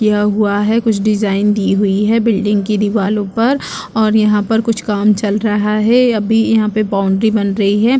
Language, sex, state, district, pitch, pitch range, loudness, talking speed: Hindi, female, Chhattisgarh, Bastar, 210 Hz, 205-220 Hz, -14 LUFS, 200 wpm